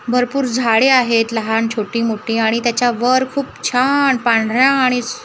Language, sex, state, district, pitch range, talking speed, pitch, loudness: Marathi, female, Maharashtra, Gondia, 225-255 Hz, 160 wpm, 245 Hz, -15 LUFS